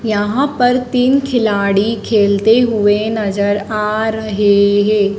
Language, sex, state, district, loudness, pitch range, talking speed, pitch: Hindi, female, Madhya Pradesh, Dhar, -14 LUFS, 205-230 Hz, 115 wpm, 215 Hz